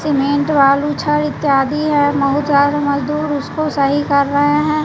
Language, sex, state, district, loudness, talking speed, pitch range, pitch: Hindi, female, Bihar, West Champaran, -15 LUFS, 160 wpm, 280-295 Hz, 285 Hz